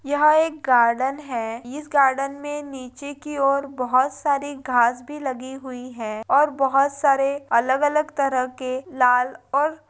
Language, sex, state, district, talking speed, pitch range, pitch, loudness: Hindi, female, Rajasthan, Nagaur, 165 wpm, 255-285 Hz, 275 Hz, -21 LUFS